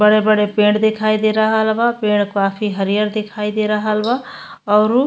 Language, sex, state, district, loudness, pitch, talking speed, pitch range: Bhojpuri, female, Uttar Pradesh, Ghazipur, -16 LUFS, 215 Hz, 190 wpm, 210-220 Hz